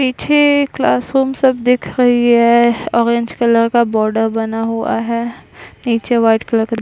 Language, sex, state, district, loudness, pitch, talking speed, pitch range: Hindi, female, Bihar, Vaishali, -14 LUFS, 235 Hz, 160 wpm, 225-250 Hz